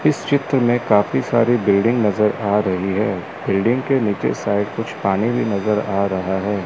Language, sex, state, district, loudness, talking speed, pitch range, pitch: Hindi, male, Chandigarh, Chandigarh, -19 LUFS, 190 wpm, 100-120 Hz, 105 Hz